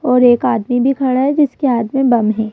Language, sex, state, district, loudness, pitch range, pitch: Hindi, female, Madhya Pradesh, Bhopal, -14 LUFS, 235-270 Hz, 250 Hz